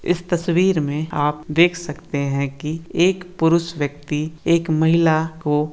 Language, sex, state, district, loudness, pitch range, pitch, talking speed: Hindi, male, Bihar, Lakhisarai, -20 LUFS, 150-170 Hz, 160 Hz, 155 wpm